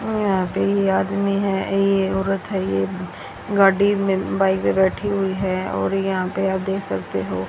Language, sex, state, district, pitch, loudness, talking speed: Hindi, female, Haryana, Rohtak, 190 Hz, -20 LUFS, 185 wpm